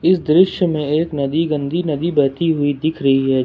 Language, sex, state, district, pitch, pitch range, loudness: Hindi, male, Jharkhand, Ranchi, 155 Hz, 145-165 Hz, -17 LUFS